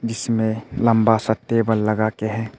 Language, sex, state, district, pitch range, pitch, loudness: Hindi, male, Arunachal Pradesh, Papum Pare, 110-115 Hz, 110 Hz, -20 LUFS